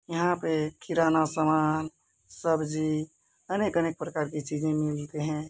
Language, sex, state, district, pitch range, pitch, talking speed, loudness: Hindi, male, Bihar, Purnia, 155-165 Hz, 155 Hz, 120 wpm, -28 LUFS